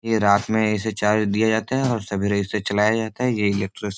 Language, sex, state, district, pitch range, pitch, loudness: Hindi, male, Bihar, Supaul, 100-110 Hz, 105 Hz, -21 LUFS